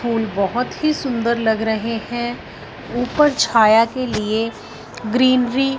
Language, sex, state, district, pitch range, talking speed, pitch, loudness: Hindi, female, Punjab, Fazilka, 225-255 Hz, 135 wpm, 240 Hz, -18 LUFS